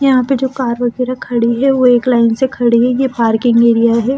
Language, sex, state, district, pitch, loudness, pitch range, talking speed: Hindi, female, Delhi, New Delhi, 245 Hz, -13 LUFS, 235-260 Hz, 260 wpm